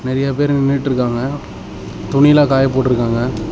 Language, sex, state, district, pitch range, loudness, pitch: Tamil, male, Tamil Nadu, Namakkal, 125-140 Hz, -15 LUFS, 135 Hz